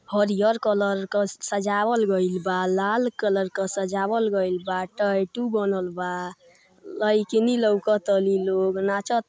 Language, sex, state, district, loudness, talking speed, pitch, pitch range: Bhojpuri, female, Uttar Pradesh, Gorakhpur, -24 LUFS, 125 wpm, 200 Hz, 190-215 Hz